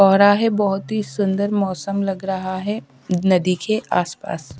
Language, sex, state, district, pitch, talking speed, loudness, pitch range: Hindi, female, Haryana, Rohtak, 195 Hz, 170 wpm, -20 LUFS, 185-205 Hz